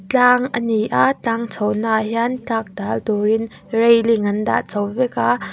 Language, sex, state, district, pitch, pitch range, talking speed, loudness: Mizo, female, Mizoram, Aizawl, 225 Hz, 210-235 Hz, 175 wpm, -18 LUFS